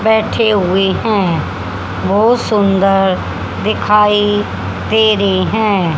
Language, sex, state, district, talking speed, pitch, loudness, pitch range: Hindi, female, Haryana, Jhajjar, 90 wpm, 205 Hz, -13 LUFS, 190-215 Hz